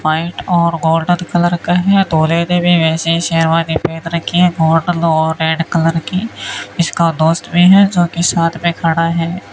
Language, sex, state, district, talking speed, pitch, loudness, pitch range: Hindi, male, Rajasthan, Bikaner, 175 wpm, 170 Hz, -14 LUFS, 165-175 Hz